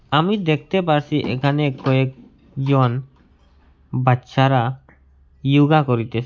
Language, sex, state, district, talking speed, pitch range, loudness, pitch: Bengali, male, Assam, Hailakandi, 85 wpm, 115-145 Hz, -19 LUFS, 130 Hz